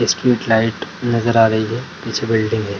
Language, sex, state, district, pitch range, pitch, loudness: Hindi, male, Bihar, Darbhanga, 110-120 Hz, 115 Hz, -17 LUFS